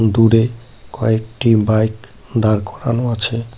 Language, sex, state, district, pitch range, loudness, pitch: Bengali, male, West Bengal, Cooch Behar, 110-115 Hz, -16 LUFS, 115 Hz